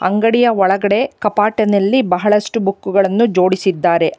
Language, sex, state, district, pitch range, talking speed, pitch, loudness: Kannada, female, Karnataka, Bangalore, 190-220 Hz, 85 wpm, 205 Hz, -14 LUFS